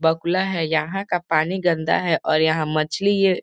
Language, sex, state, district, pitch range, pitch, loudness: Hindi, male, Bihar, Gopalganj, 155-185 Hz, 165 Hz, -21 LUFS